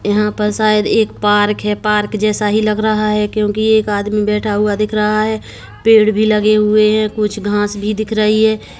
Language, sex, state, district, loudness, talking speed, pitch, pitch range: Hindi, male, Chhattisgarh, Kabirdham, -14 LUFS, 210 wpm, 210 Hz, 210-215 Hz